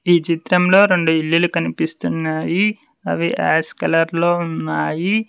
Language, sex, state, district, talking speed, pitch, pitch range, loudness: Telugu, male, Telangana, Mahabubabad, 115 wpm, 170 Hz, 160-180 Hz, -17 LUFS